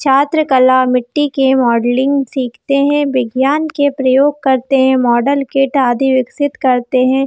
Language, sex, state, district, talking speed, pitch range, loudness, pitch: Hindi, female, Chhattisgarh, Bilaspur, 150 wpm, 255-280 Hz, -13 LUFS, 265 Hz